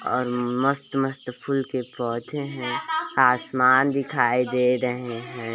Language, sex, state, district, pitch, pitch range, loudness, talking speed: Hindi, male, Chhattisgarh, Balrampur, 125 Hz, 125-140 Hz, -23 LUFS, 120 wpm